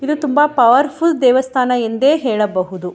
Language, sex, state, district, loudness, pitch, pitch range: Kannada, female, Karnataka, Shimoga, -14 LUFS, 255 Hz, 225-295 Hz